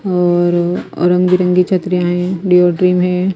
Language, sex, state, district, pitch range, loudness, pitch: Hindi, female, Himachal Pradesh, Shimla, 175-180 Hz, -13 LUFS, 180 Hz